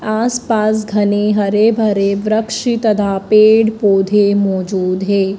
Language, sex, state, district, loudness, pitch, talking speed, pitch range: Hindi, male, Madhya Pradesh, Dhar, -14 LUFS, 210 Hz, 120 wpm, 200-220 Hz